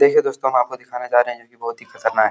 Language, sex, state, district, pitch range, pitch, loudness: Hindi, male, Uttar Pradesh, Hamirpur, 115-130 Hz, 120 Hz, -20 LUFS